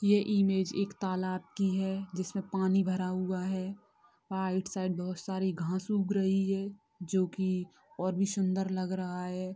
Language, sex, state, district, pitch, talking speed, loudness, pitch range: Hindi, female, Bihar, Sitamarhi, 190 Hz, 165 wpm, -32 LUFS, 185-195 Hz